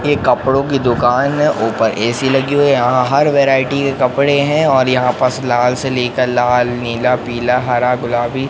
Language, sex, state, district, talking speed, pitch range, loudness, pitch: Hindi, male, Madhya Pradesh, Katni, 190 wpm, 120-135 Hz, -14 LUFS, 125 Hz